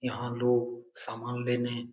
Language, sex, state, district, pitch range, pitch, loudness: Hindi, male, Bihar, Jamui, 120-125 Hz, 120 Hz, -31 LUFS